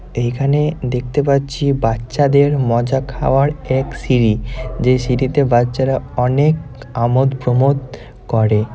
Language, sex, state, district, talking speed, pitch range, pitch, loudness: Bengali, male, West Bengal, North 24 Parganas, 115 wpm, 120-140 Hz, 130 Hz, -16 LUFS